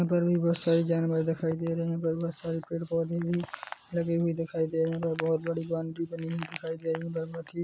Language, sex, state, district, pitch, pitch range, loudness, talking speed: Hindi, male, Chhattisgarh, Korba, 165 Hz, 165-170 Hz, -30 LUFS, 250 wpm